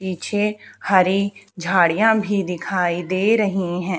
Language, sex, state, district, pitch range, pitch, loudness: Hindi, female, Haryana, Charkhi Dadri, 180-205 Hz, 190 Hz, -19 LUFS